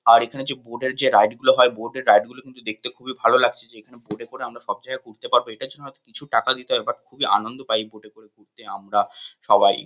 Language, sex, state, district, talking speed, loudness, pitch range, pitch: Bengali, male, West Bengal, North 24 Parganas, 280 wpm, -21 LUFS, 110-130 Hz, 120 Hz